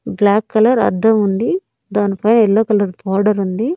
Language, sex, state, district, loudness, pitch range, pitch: Telugu, female, Andhra Pradesh, Annamaya, -15 LUFS, 200-225 Hz, 210 Hz